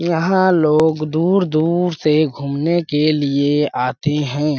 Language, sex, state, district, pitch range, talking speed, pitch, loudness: Hindi, male, Chhattisgarh, Balrampur, 145-170 Hz, 120 wpm, 155 Hz, -17 LUFS